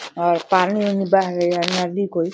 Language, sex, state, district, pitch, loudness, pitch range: Hindi, male, Uttar Pradesh, Deoria, 180 Hz, -19 LUFS, 175-195 Hz